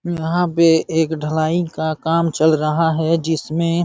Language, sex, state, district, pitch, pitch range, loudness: Hindi, male, Uttar Pradesh, Jalaun, 160 Hz, 160-165 Hz, -18 LUFS